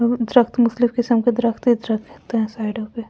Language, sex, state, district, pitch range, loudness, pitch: Hindi, female, Delhi, New Delhi, 225-240 Hz, -19 LUFS, 235 Hz